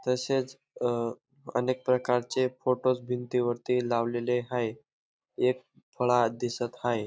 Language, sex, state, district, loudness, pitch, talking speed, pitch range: Marathi, male, Maharashtra, Dhule, -29 LUFS, 125 Hz, 100 wpm, 120-125 Hz